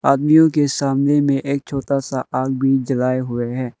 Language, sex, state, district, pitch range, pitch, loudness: Hindi, male, Arunachal Pradesh, Lower Dibang Valley, 130-140 Hz, 135 Hz, -18 LUFS